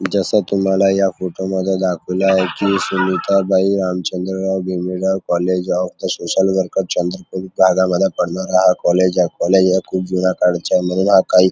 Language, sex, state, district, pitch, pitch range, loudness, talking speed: Marathi, male, Maharashtra, Chandrapur, 95 Hz, 90-95 Hz, -17 LUFS, 145 wpm